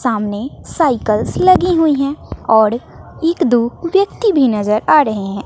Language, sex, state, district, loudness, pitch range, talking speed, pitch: Hindi, female, Bihar, West Champaran, -14 LUFS, 215-330 Hz, 155 wpm, 255 Hz